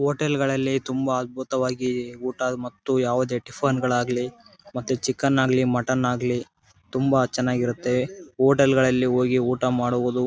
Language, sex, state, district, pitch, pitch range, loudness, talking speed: Kannada, male, Karnataka, Bellary, 125 Hz, 125-130 Hz, -23 LUFS, 135 wpm